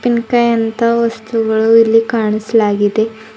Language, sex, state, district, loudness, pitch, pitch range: Kannada, female, Karnataka, Bidar, -13 LUFS, 225 Hz, 220-230 Hz